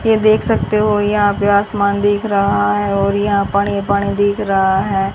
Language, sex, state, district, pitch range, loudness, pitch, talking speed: Hindi, female, Haryana, Rohtak, 200-205 Hz, -15 LUFS, 200 Hz, 200 wpm